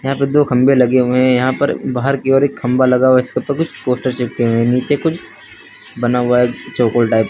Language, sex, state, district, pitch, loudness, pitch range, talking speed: Hindi, male, Uttar Pradesh, Lucknow, 125 Hz, -15 LUFS, 125-135 Hz, 255 wpm